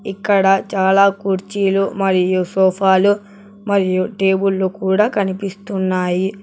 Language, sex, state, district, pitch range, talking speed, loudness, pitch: Telugu, male, Telangana, Hyderabad, 190-200 Hz, 105 wpm, -16 LUFS, 195 Hz